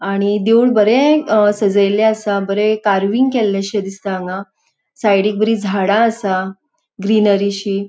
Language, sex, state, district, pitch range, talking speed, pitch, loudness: Konkani, female, Goa, North and South Goa, 195-220 Hz, 120 wpm, 205 Hz, -15 LUFS